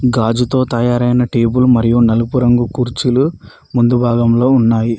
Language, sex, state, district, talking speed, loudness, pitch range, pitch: Telugu, male, Telangana, Mahabubabad, 120 wpm, -13 LUFS, 115-125 Hz, 120 Hz